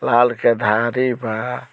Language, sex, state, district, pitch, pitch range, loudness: Bhojpuri, male, Bihar, Muzaffarpur, 120 Hz, 110-120 Hz, -18 LUFS